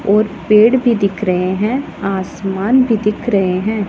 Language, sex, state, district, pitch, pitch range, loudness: Hindi, female, Punjab, Pathankot, 205 Hz, 195-220 Hz, -15 LUFS